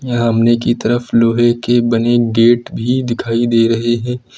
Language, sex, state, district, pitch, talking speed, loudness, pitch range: Hindi, male, Uttar Pradesh, Lucknow, 120 Hz, 165 wpm, -14 LUFS, 115-120 Hz